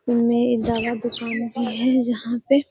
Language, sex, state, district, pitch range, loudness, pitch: Magahi, female, Bihar, Gaya, 235-245 Hz, -22 LUFS, 240 Hz